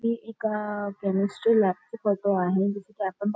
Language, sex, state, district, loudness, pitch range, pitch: Marathi, female, Maharashtra, Nagpur, -26 LUFS, 195-215 Hz, 205 Hz